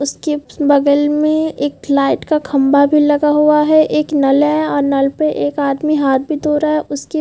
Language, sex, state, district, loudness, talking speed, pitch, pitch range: Hindi, female, Chhattisgarh, Bilaspur, -14 LUFS, 210 wpm, 295 Hz, 280-305 Hz